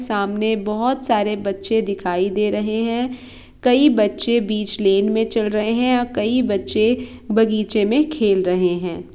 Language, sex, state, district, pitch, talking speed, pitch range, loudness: Hindi, female, Bihar, Saran, 215 Hz, 165 wpm, 205-235 Hz, -19 LUFS